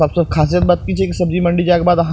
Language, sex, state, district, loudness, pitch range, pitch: Maithili, male, Bihar, Purnia, -15 LUFS, 170-180 Hz, 175 Hz